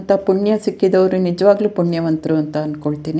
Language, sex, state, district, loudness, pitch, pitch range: Kannada, female, Karnataka, Dakshina Kannada, -17 LUFS, 185 Hz, 155-195 Hz